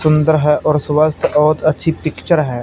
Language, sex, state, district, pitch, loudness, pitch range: Hindi, male, Punjab, Fazilka, 155 Hz, -15 LUFS, 150-155 Hz